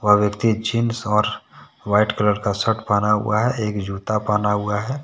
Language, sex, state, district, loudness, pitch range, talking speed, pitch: Hindi, male, Jharkhand, Deoghar, -20 LUFS, 105-110 Hz, 190 wpm, 105 Hz